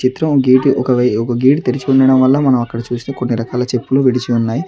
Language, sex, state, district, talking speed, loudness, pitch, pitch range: Telugu, male, Telangana, Mahabubabad, 205 wpm, -14 LUFS, 130 Hz, 120-135 Hz